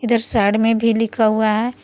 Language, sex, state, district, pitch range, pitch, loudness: Hindi, female, Jharkhand, Palamu, 220-230 Hz, 225 Hz, -15 LUFS